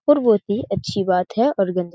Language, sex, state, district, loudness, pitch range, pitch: Hindi, male, Bihar, Jahanabad, -20 LUFS, 180-220 Hz, 195 Hz